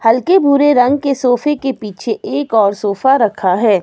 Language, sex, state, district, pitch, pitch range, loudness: Hindi, female, Himachal Pradesh, Shimla, 250 Hz, 215-280 Hz, -13 LUFS